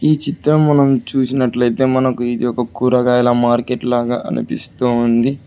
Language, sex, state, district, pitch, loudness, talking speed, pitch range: Telugu, male, Telangana, Hyderabad, 125 Hz, -16 LUFS, 120 wpm, 120-135 Hz